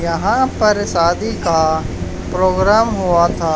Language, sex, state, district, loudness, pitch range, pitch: Hindi, male, Haryana, Charkhi Dadri, -15 LUFS, 160-205 Hz, 170 Hz